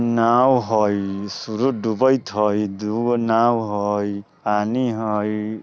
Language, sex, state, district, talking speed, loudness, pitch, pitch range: Bajjika, male, Bihar, Vaishali, 115 wpm, -20 LUFS, 110 Hz, 105-120 Hz